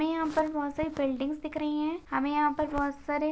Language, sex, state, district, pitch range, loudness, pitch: Hindi, female, Maharashtra, Sindhudurg, 290-310 Hz, -30 LUFS, 300 Hz